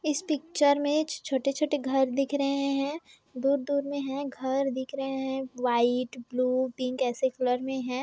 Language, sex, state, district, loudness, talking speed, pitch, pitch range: Hindi, female, Bihar, Kishanganj, -28 LUFS, 165 wpm, 270 Hz, 255-285 Hz